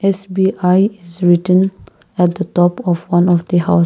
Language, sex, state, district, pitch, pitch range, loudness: English, female, Nagaland, Kohima, 180 Hz, 175-190 Hz, -15 LUFS